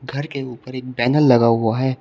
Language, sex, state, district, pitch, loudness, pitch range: Hindi, male, Uttar Pradesh, Shamli, 130 Hz, -18 LUFS, 120-130 Hz